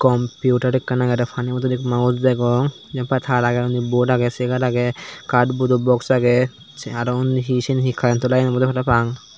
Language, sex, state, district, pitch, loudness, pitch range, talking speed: Chakma, male, Tripura, Dhalai, 125 Hz, -19 LUFS, 125-130 Hz, 180 wpm